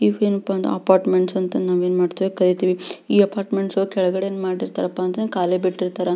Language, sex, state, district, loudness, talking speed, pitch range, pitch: Kannada, female, Karnataka, Belgaum, -20 LUFS, 165 wpm, 180-195 Hz, 185 Hz